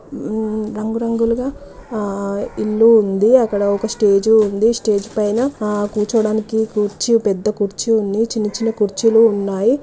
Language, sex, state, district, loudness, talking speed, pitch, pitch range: Telugu, female, Andhra Pradesh, Guntur, -17 LUFS, 135 wpm, 215 Hz, 205-225 Hz